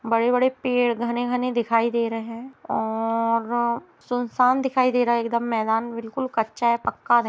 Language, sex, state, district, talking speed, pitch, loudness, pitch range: Hindi, female, Bihar, Sitamarhi, 180 wpm, 235 Hz, -23 LUFS, 230-250 Hz